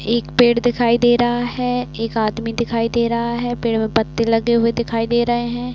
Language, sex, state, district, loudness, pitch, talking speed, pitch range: Hindi, female, Uttar Pradesh, Varanasi, -18 LUFS, 235 Hz, 210 wpm, 230-240 Hz